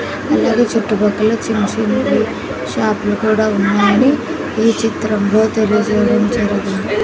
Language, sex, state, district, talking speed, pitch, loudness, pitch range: Telugu, female, Andhra Pradesh, Sri Satya Sai, 95 wpm, 215 Hz, -15 LUFS, 210-225 Hz